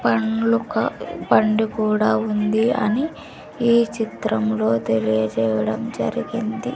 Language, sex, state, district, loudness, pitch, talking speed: Telugu, female, Andhra Pradesh, Sri Satya Sai, -21 LUFS, 215 Hz, 90 wpm